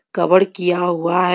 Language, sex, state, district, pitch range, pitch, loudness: Hindi, female, Jharkhand, Ranchi, 175-185 Hz, 180 Hz, -17 LUFS